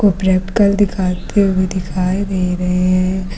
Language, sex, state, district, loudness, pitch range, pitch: Hindi, female, Uttar Pradesh, Lucknow, -16 LUFS, 185-195 Hz, 185 Hz